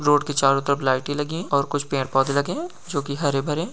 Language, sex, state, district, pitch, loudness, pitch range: Hindi, male, West Bengal, Kolkata, 145 Hz, -23 LUFS, 140-150 Hz